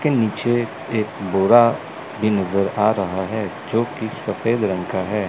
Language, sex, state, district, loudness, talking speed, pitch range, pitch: Hindi, male, Chandigarh, Chandigarh, -20 LUFS, 170 wpm, 100-115 Hz, 110 Hz